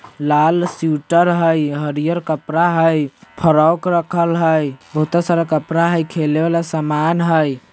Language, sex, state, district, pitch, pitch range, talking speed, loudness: Bajjika, male, Bihar, Vaishali, 165 Hz, 155-170 Hz, 130 wpm, -16 LUFS